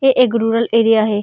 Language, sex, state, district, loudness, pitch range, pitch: Hindi, female, Bihar, Samastipur, -14 LUFS, 225-240 Hz, 230 Hz